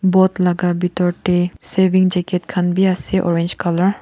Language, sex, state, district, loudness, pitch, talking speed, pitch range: Nagamese, female, Nagaland, Kohima, -17 LUFS, 180 Hz, 180 wpm, 175-185 Hz